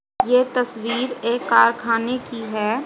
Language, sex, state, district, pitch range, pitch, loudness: Hindi, female, Haryana, Rohtak, 225-250 Hz, 240 Hz, -20 LUFS